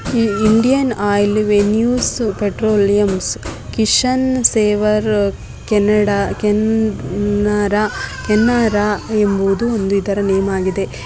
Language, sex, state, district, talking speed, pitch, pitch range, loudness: Kannada, female, Karnataka, Raichur, 75 wpm, 210 Hz, 200-220 Hz, -16 LUFS